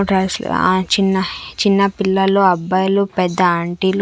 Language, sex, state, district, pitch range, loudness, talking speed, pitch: Telugu, female, Andhra Pradesh, Manyam, 185-195 Hz, -16 LUFS, 135 wpm, 190 Hz